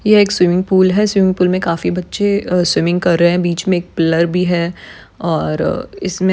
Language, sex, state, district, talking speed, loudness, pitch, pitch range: Hindi, female, Maharashtra, Dhule, 220 wpm, -15 LUFS, 180 Hz, 175-190 Hz